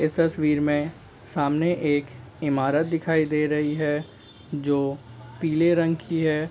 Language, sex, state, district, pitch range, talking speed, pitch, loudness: Hindi, male, Jharkhand, Jamtara, 145-160 Hz, 140 wpm, 150 Hz, -24 LUFS